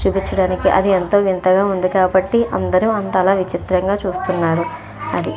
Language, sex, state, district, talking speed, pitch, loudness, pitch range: Telugu, female, Andhra Pradesh, Krishna, 125 wpm, 190 Hz, -17 LUFS, 185-195 Hz